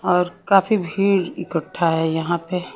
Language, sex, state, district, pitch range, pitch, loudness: Hindi, female, Haryana, Rohtak, 170-195 Hz, 180 Hz, -20 LUFS